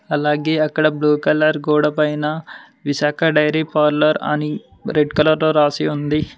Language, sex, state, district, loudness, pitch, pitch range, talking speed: Telugu, male, Telangana, Mahabubabad, -17 LUFS, 150 Hz, 150-155 Hz, 130 wpm